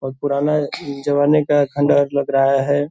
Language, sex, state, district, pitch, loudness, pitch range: Hindi, male, Bihar, Purnia, 145 Hz, -17 LUFS, 140-145 Hz